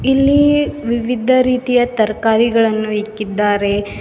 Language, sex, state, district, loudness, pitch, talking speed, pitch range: Kannada, female, Karnataka, Bidar, -15 LUFS, 230 Hz, 75 wpm, 215-255 Hz